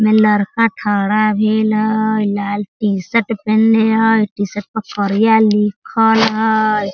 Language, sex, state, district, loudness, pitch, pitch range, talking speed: Hindi, female, Bihar, Sitamarhi, -15 LUFS, 215 Hz, 205-220 Hz, 120 wpm